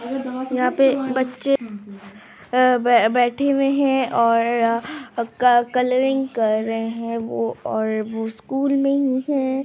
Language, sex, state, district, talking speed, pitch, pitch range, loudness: Hindi, male, Maharashtra, Dhule, 120 wpm, 250 Hz, 230-270 Hz, -20 LUFS